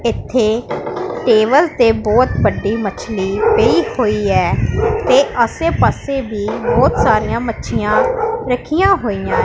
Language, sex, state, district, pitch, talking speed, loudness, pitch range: Punjabi, female, Punjab, Pathankot, 240 Hz, 120 wpm, -15 LUFS, 215-310 Hz